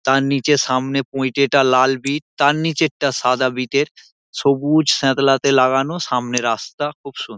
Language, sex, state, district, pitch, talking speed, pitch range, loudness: Bengali, male, West Bengal, Dakshin Dinajpur, 135 Hz, 140 wpm, 130-145 Hz, -17 LUFS